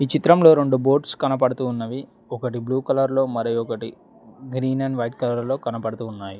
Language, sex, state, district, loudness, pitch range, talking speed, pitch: Telugu, male, Telangana, Mahabubabad, -21 LUFS, 120-135 Hz, 170 wpm, 130 Hz